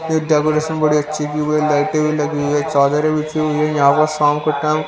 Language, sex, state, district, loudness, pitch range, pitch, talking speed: Hindi, male, Haryana, Rohtak, -16 LUFS, 150-155 Hz, 150 Hz, 280 wpm